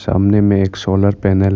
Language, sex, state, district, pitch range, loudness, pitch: Hindi, male, Arunachal Pradesh, Lower Dibang Valley, 95-100 Hz, -14 LUFS, 100 Hz